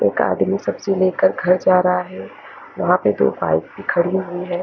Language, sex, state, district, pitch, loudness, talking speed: Hindi, female, Chandigarh, Chandigarh, 180 Hz, -18 LUFS, 220 wpm